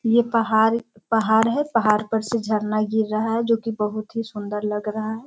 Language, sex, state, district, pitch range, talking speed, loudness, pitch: Hindi, female, Bihar, Sitamarhi, 215-230 Hz, 215 wpm, -22 LUFS, 220 Hz